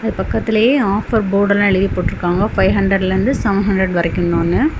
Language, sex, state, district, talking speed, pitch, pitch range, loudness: Tamil, female, Tamil Nadu, Kanyakumari, 140 wpm, 200 Hz, 190-205 Hz, -15 LUFS